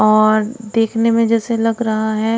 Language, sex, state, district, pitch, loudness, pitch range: Hindi, female, Odisha, Khordha, 225 Hz, -16 LUFS, 215-230 Hz